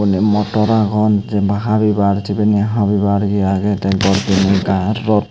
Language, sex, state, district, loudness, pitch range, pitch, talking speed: Chakma, male, Tripura, Unakoti, -15 LUFS, 100-105 Hz, 100 Hz, 160 wpm